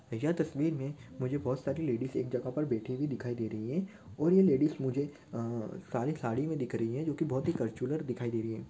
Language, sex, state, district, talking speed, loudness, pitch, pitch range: Hindi, male, Maharashtra, Solapur, 250 wpm, -33 LUFS, 130 Hz, 120-155 Hz